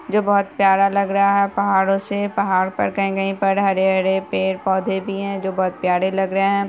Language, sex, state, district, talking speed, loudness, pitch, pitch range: Hindi, female, Bihar, Saharsa, 195 wpm, -19 LUFS, 195 Hz, 190-200 Hz